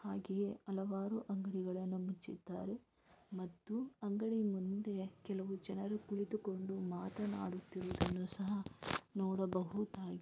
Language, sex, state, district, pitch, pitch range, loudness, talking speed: Kannada, female, Karnataka, Mysore, 195 Hz, 185-205 Hz, -42 LUFS, 75 wpm